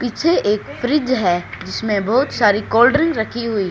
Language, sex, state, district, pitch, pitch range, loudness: Hindi, male, Haryana, Charkhi Dadri, 235 Hz, 210-255 Hz, -17 LUFS